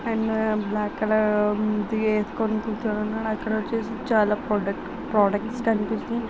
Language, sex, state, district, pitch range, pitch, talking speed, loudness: Telugu, female, Andhra Pradesh, Visakhapatnam, 210-220 Hz, 215 Hz, 125 wpm, -24 LUFS